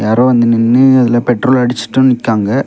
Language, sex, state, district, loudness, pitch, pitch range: Tamil, male, Tamil Nadu, Kanyakumari, -10 LUFS, 125 Hz, 115-130 Hz